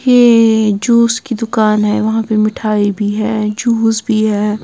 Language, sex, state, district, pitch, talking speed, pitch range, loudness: Hindi, female, Punjab, Kapurthala, 220 Hz, 170 wpm, 210-230 Hz, -13 LUFS